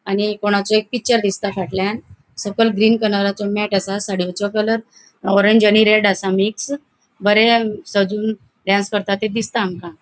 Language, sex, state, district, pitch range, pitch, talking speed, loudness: Konkani, female, Goa, North and South Goa, 200-220 Hz, 205 Hz, 150 wpm, -17 LUFS